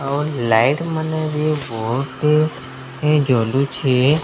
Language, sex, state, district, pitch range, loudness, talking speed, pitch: Odia, male, Odisha, Sambalpur, 130-150 Hz, -19 LUFS, 85 wpm, 140 Hz